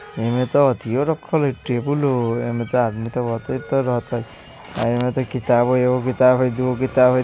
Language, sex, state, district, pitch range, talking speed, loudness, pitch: Bajjika, male, Bihar, Vaishali, 120-130 Hz, 150 wpm, -20 LUFS, 125 Hz